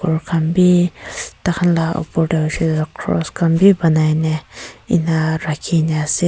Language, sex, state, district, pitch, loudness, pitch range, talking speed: Nagamese, female, Nagaland, Kohima, 165 Hz, -17 LUFS, 155-175 Hz, 160 wpm